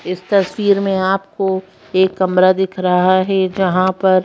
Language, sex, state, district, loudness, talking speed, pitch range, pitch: Hindi, female, Madhya Pradesh, Bhopal, -15 LUFS, 155 wpm, 185-195 Hz, 190 Hz